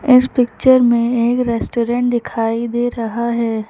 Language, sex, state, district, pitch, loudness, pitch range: Hindi, male, Uttar Pradesh, Lucknow, 235 Hz, -16 LUFS, 235-245 Hz